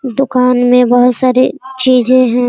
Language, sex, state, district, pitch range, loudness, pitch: Hindi, female, Bihar, Araria, 245-260 Hz, -10 LUFS, 255 Hz